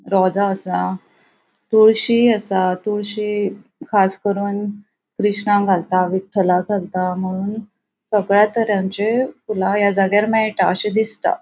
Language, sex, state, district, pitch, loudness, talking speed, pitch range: Konkani, female, Goa, North and South Goa, 205 Hz, -18 LUFS, 105 wpm, 190-215 Hz